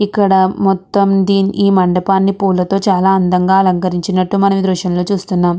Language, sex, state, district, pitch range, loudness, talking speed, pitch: Telugu, female, Andhra Pradesh, Guntur, 185-195 Hz, -13 LUFS, 150 wpm, 190 Hz